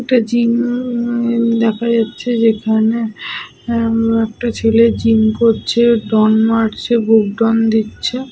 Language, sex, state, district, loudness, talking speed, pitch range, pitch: Bengali, female, Jharkhand, Sahebganj, -14 LUFS, 130 wpm, 225-235 Hz, 230 Hz